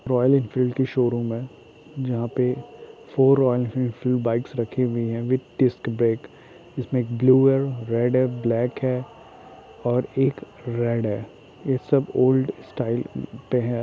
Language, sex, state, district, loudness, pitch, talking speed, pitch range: Hindi, male, Chhattisgarh, Raigarh, -23 LUFS, 125 Hz, 155 wpm, 120-130 Hz